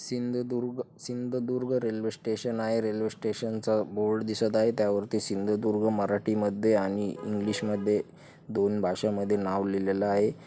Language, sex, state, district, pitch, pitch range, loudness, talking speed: Marathi, male, Maharashtra, Sindhudurg, 110 Hz, 100-110 Hz, -29 LUFS, 130 wpm